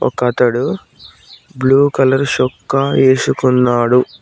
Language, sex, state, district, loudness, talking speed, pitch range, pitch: Telugu, male, Telangana, Mahabubabad, -14 LUFS, 85 wpm, 125-135 Hz, 130 Hz